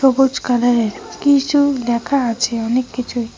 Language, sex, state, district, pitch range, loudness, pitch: Bengali, female, West Bengal, Cooch Behar, 235-270 Hz, -17 LUFS, 250 Hz